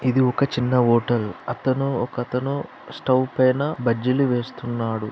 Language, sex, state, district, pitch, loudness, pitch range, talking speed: Telugu, male, Telangana, Karimnagar, 125 Hz, -22 LUFS, 120-130 Hz, 115 wpm